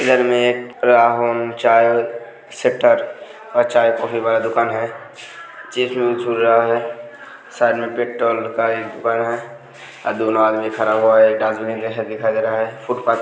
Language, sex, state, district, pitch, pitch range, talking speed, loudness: Hindi, male, Uttar Pradesh, Hamirpur, 115 Hz, 115-120 Hz, 120 wpm, -17 LUFS